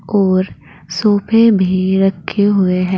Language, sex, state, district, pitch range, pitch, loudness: Hindi, female, Uttar Pradesh, Saharanpur, 185-205 Hz, 190 Hz, -14 LUFS